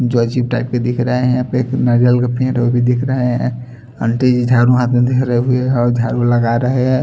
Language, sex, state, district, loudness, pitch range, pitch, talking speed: Hindi, male, Chhattisgarh, Raipur, -15 LUFS, 120-125 Hz, 125 Hz, 275 wpm